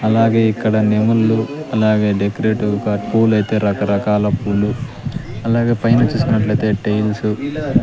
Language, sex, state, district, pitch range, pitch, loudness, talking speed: Telugu, male, Andhra Pradesh, Sri Satya Sai, 105-115 Hz, 110 Hz, -17 LUFS, 105 wpm